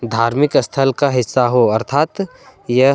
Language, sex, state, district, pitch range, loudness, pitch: Hindi, male, Jharkhand, Deoghar, 120-140 Hz, -16 LUFS, 130 Hz